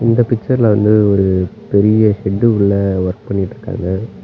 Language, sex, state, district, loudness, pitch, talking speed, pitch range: Tamil, male, Tamil Nadu, Namakkal, -14 LUFS, 105 Hz, 125 wpm, 95-115 Hz